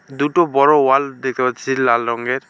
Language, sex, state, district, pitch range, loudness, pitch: Bengali, male, West Bengal, Alipurduar, 125-140 Hz, -16 LUFS, 135 Hz